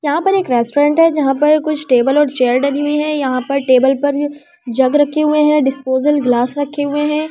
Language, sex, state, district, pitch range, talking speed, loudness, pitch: Hindi, female, Delhi, New Delhi, 265-300 Hz, 220 wpm, -14 LUFS, 290 Hz